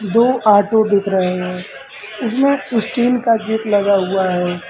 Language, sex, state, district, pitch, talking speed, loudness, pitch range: Hindi, male, Uttar Pradesh, Lucknow, 210 Hz, 155 wpm, -16 LUFS, 190-230 Hz